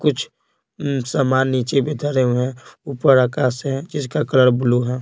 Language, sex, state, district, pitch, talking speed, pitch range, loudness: Hindi, male, Bihar, Patna, 130 Hz, 165 wpm, 125-140 Hz, -19 LUFS